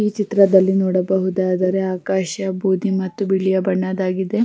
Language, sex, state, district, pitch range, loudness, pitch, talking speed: Kannada, female, Karnataka, Raichur, 185-195 Hz, -18 LUFS, 190 Hz, 110 wpm